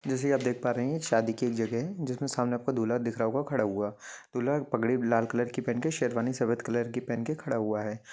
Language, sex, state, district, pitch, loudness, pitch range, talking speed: Hindi, male, Maharashtra, Sindhudurg, 120 Hz, -30 LUFS, 115-130 Hz, 265 wpm